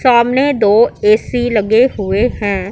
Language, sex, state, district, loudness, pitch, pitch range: Hindi, female, Punjab, Pathankot, -13 LUFS, 220 Hz, 205-245 Hz